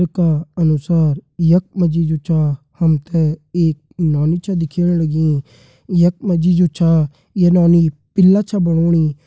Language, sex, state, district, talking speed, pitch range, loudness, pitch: Garhwali, male, Uttarakhand, Tehri Garhwal, 135 wpm, 155-175 Hz, -16 LUFS, 165 Hz